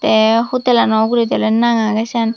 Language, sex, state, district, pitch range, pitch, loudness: Chakma, female, Tripura, Dhalai, 220-235 Hz, 230 Hz, -14 LUFS